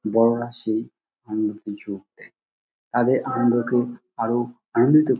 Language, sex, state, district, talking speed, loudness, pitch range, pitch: Bengali, male, West Bengal, Dakshin Dinajpur, 125 wpm, -23 LUFS, 110-120 Hz, 115 Hz